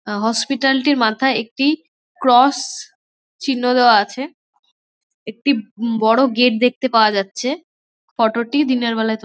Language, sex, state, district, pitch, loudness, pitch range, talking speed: Bengali, female, West Bengal, Dakshin Dinajpur, 245 Hz, -17 LUFS, 225-270 Hz, 115 wpm